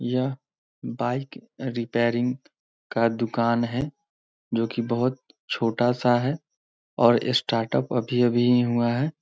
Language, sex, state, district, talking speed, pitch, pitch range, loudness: Hindi, male, Bihar, Muzaffarpur, 115 wpm, 120 Hz, 120-130 Hz, -24 LUFS